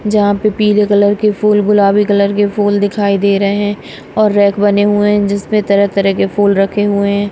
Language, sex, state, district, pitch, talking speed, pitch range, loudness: Hindi, female, Punjab, Kapurthala, 205 Hz, 215 wpm, 200-210 Hz, -12 LUFS